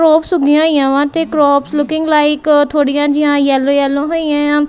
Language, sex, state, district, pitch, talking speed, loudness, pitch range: Punjabi, female, Punjab, Kapurthala, 295 Hz, 180 wpm, -12 LUFS, 285-310 Hz